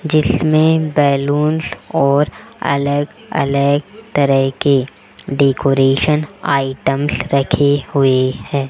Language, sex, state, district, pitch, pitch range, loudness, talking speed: Hindi, female, Rajasthan, Jaipur, 140 Hz, 135-150 Hz, -15 LUFS, 85 wpm